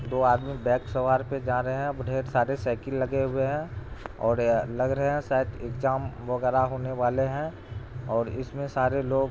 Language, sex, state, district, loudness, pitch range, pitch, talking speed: Hindi, male, Bihar, Supaul, -27 LUFS, 120-135 Hz, 130 Hz, 185 wpm